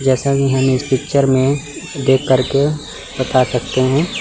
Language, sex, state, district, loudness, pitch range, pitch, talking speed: Hindi, male, Chandigarh, Chandigarh, -16 LUFS, 130-140 Hz, 135 Hz, 155 wpm